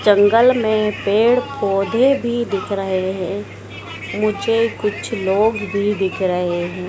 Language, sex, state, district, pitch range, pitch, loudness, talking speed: Hindi, female, Madhya Pradesh, Dhar, 190-225 Hz, 205 Hz, -18 LUFS, 130 wpm